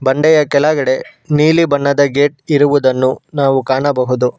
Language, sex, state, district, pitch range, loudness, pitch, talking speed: Kannada, male, Karnataka, Bangalore, 130-150 Hz, -13 LUFS, 140 Hz, 110 wpm